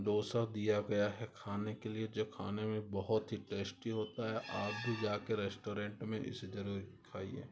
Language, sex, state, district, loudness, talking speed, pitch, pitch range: Hindi, female, Rajasthan, Nagaur, -40 LUFS, 200 wpm, 105 Hz, 105-110 Hz